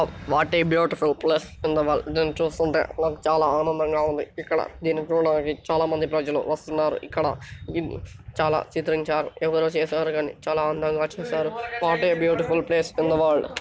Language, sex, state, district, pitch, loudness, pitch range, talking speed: Telugu, male, Telangana, Nalgonda, 160 Hz, -24 LUFS, 155-160 Hz, 150 wpm